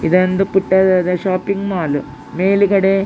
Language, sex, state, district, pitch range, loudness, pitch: Kannada, female, Karnataka, Dakshina Kannada, 180-195 Hz, -16 LUFS, 190 Hz